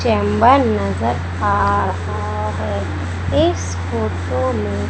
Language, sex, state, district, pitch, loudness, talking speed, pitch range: Hindi, female, Madhya Pradesh, Umaria, 95 Hz, -18 LUFS, 100 wpm, 90-100 Hz